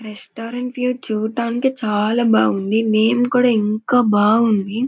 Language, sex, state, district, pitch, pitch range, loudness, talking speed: Telugu, female, Andhra Pradesh, Anantapur, 225 Hz, 215-245 Hz, -17 LUFS, 100 wpm